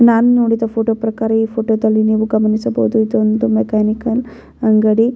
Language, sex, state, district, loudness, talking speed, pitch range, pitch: Kannada, female, Karnataka, Bellary, -15 LUFS, 140 wpm, 220-230 Hz, 220 Hz